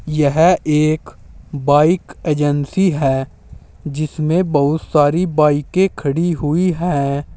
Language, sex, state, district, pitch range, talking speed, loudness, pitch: Hindi, male, Uttar Pradesh, Saharanpur, 145-170 Hz, 100 wpm, -16 LUFS, 150 Hz